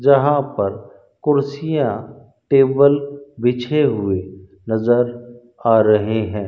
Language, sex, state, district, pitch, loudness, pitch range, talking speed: Hindi, male, Rajasthan, Bikaner, 120 Hz, -18 LUFS, 110-140 Hz, 95 wpm